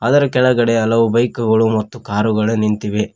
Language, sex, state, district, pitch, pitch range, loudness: Kannada, male, Karnataka, Koppal, 115 Hz, 105-120 Hz, -16 LUFS